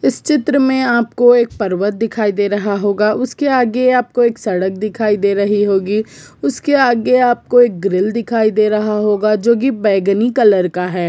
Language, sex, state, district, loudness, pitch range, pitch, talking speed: Hindi, female, Jharkhand, Sahebganj, -14 LUFS, 200-245 Hz, 215 Hz, 200 wpm